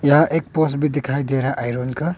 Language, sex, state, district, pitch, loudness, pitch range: Hindi, male, Arunachal Pradesh, Longding, 145 Hz, -20 LUFS, 135-155 Hz